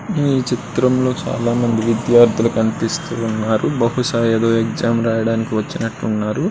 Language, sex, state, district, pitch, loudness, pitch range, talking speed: Telugu, male, Andhra Pradesh, Srikakulam, 115 Hz, -17 LUFS, 115-125 Hz, 90 wpm